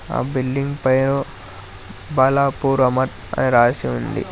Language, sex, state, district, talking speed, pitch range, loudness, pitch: Telugu, male, Telangana, Hyderabad, 110 wpm, 95-135 Hz, -19 LUFS, 130 Hz